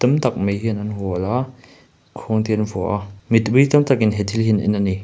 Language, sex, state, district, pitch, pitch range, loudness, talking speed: Mizo, male, Mizoram, Aizawl, 105 Hz, 100-125 Hz, -19 LUFS, 260 wpm